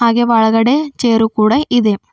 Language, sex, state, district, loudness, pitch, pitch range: Kannada, female, Karnataka, Bidar, -13 LUFS, 230 Hz, 220-245 Hz